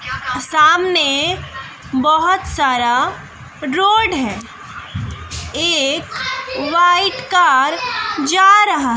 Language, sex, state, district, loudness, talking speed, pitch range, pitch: Hindi, female, Bihar, West Champaran, -15 LUFS, 65 wpm, 280-380 Hz, 330 Hz